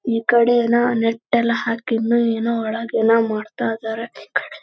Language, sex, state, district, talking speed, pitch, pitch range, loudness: Kannada, female, Karnataka, Belgaum, 170 wpm, 230 Hz, 225-235 Hz, -19 LUFS